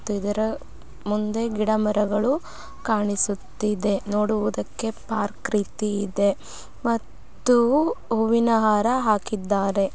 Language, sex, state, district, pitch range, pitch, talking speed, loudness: Kannada, female, Karnataka, Belgaum, 205-225 Hz, 215 Hz, 80 wpm, -23 LUFS